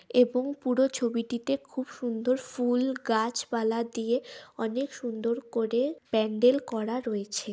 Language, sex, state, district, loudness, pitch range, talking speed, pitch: Bengali, female, West Bengal, Malda, -29 LUFS, 225-255 Hz, 110 wpm, 240 Hz